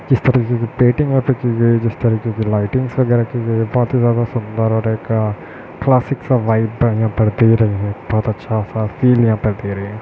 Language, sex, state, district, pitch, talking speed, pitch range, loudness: Hindi, male, Bihar, Gaya, 115 Hz, 240 wpm, 110-125 Hz, -16 LUFS